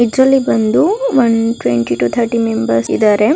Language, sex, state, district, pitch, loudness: Kannada, female, Karnataka, Bellary, 225 Hz, -13 LUFS